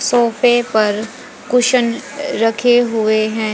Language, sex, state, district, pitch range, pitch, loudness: Hindi, female, Haryana, Jhajjar, 220-245 Hz, 235 Hz, -15 LUFS